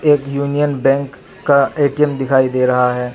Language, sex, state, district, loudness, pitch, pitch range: Hindi, male, Jharkhand, Garhwa, -15 LUFS, 140 Hz, 130-145 Hz